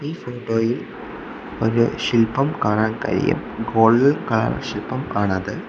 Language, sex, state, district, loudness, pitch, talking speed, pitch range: Malayalam, male, Kerala, Kollam, -20 LUFS, 115 Hz, 105 wpm, 110-130 Hz